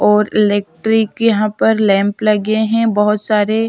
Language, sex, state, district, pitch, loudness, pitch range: Hindi, female, Bihar, Patna, 215 Hz, -14 LUFS, 210-220 Hz